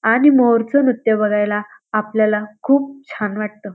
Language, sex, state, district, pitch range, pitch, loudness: Marathi, female, Maharashtra, Dhule, 210-255 Hz, 215 Hz, -17 LUFS